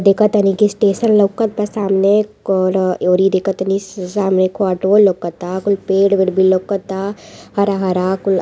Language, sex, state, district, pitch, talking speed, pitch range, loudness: Hindi, female, Uttar Pradesh, Varanasi, 195 Hz, 140 wpm, 190-205 Hz, -15 LUFS